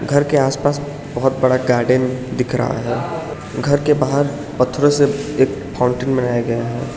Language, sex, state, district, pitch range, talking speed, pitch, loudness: Hindi, male, Arunachal Pradesh, Lower Dibang Valley, 125-145 Hz, 165 wpm, 135 Hz, -18 LUFS